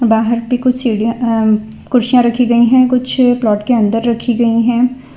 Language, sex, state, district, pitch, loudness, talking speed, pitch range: Hindi, female, Gujarat, Valsad, 235 Hz, -13 LUFS, 185 wpm, 225-250 Hz